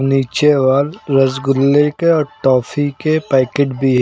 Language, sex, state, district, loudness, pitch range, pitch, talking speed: Hindi, male, Uttar Pradesh, Lucknow, -14 LUFS, 135-145 Hz, 135 Hz, 135 wpm